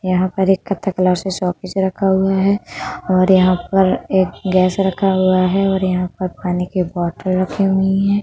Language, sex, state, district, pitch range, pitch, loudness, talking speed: Hindi, female, Uttar Pradesh, Budaun, 185-195 Hz, 185 Hz, -17 LUFS, 195 wpm